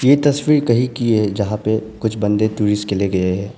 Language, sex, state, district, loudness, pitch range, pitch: Hindi, male, Arunachal Pradesh, Papum Pare, -17 LUFS, 105-120 Hz, 110 Hz